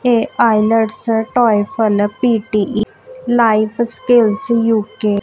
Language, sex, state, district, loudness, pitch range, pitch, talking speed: Punjabi, female, Punjab, Kapurthala, -15 LUFS, 215-235 Hz, 225 Hz, 90 wpm